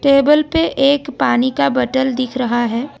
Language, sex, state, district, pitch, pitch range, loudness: Hindi, female, Assam, Sonitpur, 265 Hz, 240-285 Hz, -16 LUFS